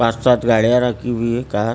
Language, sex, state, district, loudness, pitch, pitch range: Hindi, male, Maharashtra, Gondia, -17 LUFS, 115 Hz, 115-125 Hz